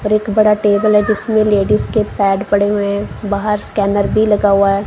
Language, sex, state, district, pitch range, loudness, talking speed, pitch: Hindi, female, Punjab, Kapurthala, 200-210 Hz, -14 LUFS, 210 wpm, 205 Hz